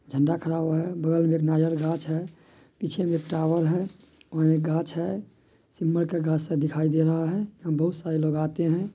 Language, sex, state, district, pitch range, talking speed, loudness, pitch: Maithili, male, Bihar, Madhepura, 160-170 Hz, 220 wpm, -26 LUFS, 165 Hz